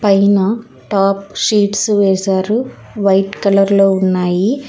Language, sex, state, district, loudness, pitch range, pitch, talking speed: Telugu, female, Telangana, Hyderabad, -14 LUFS, 195-205 Hz, 200 Hz, 100 wpm